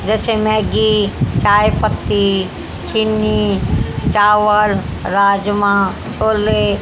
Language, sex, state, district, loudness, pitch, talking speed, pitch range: Hindi, female, Haryana, Rohtak, -15 LUFS, 205 Hz, 70 wpm, 200-215 Hz